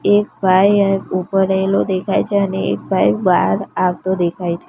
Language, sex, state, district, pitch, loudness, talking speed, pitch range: Gujarati, female, Gujarat, Gandhinagar, 190 Hz, -16 LUFS, 165 wpm, 185-200 Hz